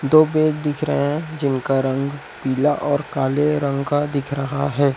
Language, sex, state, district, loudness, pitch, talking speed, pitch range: Hindi, male, Chhattisgarh, Raipur, -20 LUFS, 140 Hz, 180 wpm, 140-150 Hz